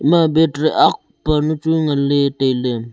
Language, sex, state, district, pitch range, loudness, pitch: Wancho, male, Arunachal Pradesh, Longding, 140-155 Hz, -16 LUFS, 150 Hz